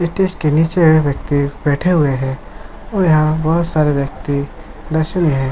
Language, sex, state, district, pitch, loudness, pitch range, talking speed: Hindi, male, Jharkhand, Sahebganj, 155 Hz, -16 LUFS, 140-165 Hz, 175 wpm